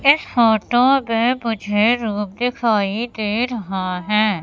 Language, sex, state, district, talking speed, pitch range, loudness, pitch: Hindi, female, Madhya Pradesh, Katni, 120 wpm, 210-240 Hz, -18 LUFS, 225 Hz